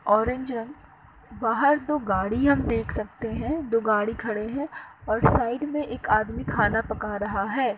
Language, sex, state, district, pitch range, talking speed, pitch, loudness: Hindi, female, Uttar Pradesh, Etah, 215-280 Hz, 170 wpm, 230 Hz, -25 LUFS